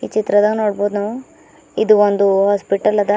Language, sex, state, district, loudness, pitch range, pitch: Kannada, female, Karnataka, Bidar, -16 LUFS, 205-220 Hz, 205 Hz